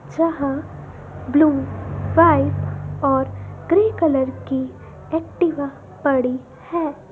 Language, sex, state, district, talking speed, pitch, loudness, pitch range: Hindi, female, Madhya Pradesh, Dhar, 85 wpm, 295 Hz, -20 LUFS, 270-330 Hz